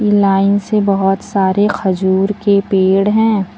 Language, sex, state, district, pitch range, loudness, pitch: Hindi, female, Uttar Pradesh, Lucknow, 195-205 Hz, -13 LUFS, 200 Hz